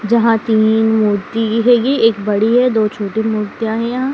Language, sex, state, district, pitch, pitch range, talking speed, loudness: Hindi, female, Madhya Pradesh, Dhar, 220 Hz, 215-235 Hz, 190 wpm, -14 LUFS